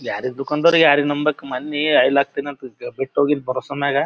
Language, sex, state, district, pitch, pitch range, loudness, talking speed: Kannada, male, Karnataka, Gulbarga, 145 Hz, 140-150 Hz, -18 LUFS, 175 wpm